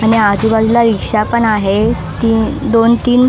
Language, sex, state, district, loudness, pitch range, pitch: Marathi, female, Maharashtra, Mumbai Suburban, -12 LUFS, 215-235 Hz, 225 Hz